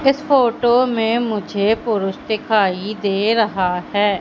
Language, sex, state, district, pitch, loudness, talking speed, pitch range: Hindi, female, Madhya Pradesh, Katni, 215 Hz, -18 LUFS, 130 wpm, 200-235 Hz